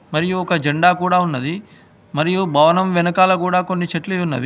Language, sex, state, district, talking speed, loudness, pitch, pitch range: Telugu, male, Telangana, Hyderabad, 160 wpm, -17 LUFS, 180 Hz, 165-185 Hz